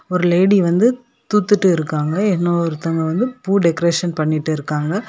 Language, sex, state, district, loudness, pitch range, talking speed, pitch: Tamil, female, Tamil Nadu, Kanyakumari, -17 LUFS, 160-200 Hz, 120 wpm, 175 Hz